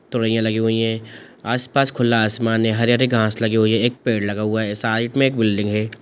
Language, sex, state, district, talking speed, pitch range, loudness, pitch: Hindi, male, Bihar, Sitamarhi, 270 wpm, 110-120 Hz, -19 LUFS, 115 Hz